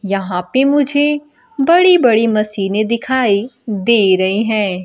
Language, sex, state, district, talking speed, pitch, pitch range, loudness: Hindi, female, Bihar, Kaimur, 125 wpm, 225 Hz, 200-275 Hz, -14 LUFS